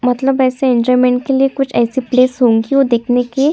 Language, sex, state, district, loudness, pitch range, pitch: Hindi, female, Chhattisgarh, Kabirdham, -13 LUFS, 245-270 Hz, 255 Hz